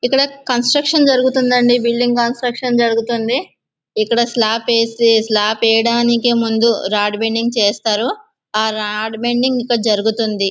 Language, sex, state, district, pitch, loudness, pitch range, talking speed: Telugu, male, Andhra Pradesh, Visakhapatnam, 235 Hz, -15 LUFS, 220-245 Hz, 130 wpm